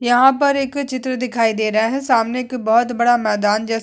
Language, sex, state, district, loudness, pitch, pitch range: Hindi, female, Uttar Pradesh, Hamirpur, -17 LUFS, 245 Hz, 225-255 Hz